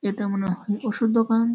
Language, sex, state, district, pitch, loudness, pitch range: Bengali, male, West Bengal, Malda, 220 Hz, -24 LUFS, 200-230 Hz